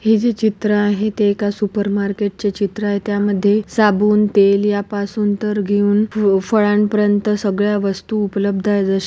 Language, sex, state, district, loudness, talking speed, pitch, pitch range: Marathi, female, Maharashtra, Pune, -17 LUFS, 150 wpm, 205 Hz, 200-210 Hz